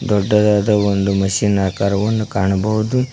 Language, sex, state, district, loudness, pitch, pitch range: Kannada, male, Karnataka, Koppal, -16 LUFS, 100 Hz, 100-105 Hz